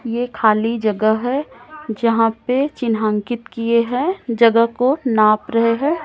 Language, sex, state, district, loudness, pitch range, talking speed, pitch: Hindi, female, Chhattisgarh, Raipur, -17 LUFS, 225-255 Hz, 140 wpm, 230 Hz